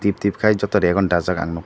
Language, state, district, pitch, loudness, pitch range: Kokborok, Tripura, Dhalai, 95 Hz, -19 LUFS, 85-100 Hz